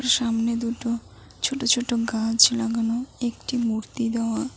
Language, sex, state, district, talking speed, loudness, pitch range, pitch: Bengali, female, West Bengal, Cooch Behar, 120 wpm, -23 LUFS, 230-245 Hz, 235 Hz